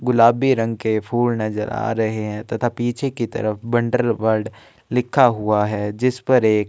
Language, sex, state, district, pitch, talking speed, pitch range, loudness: Hindi, male, Chhattisgarh, Kabirdham, 115 Hz, 180 wpm, 110-120 Hz, -20 LUFS